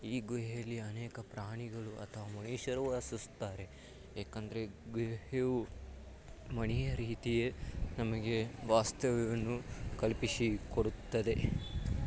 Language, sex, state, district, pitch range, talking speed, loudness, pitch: Kannada, male, Karnataka, Dharwad, 105-120 Hz, 70 wpm, -38 LUFS, 115 Hz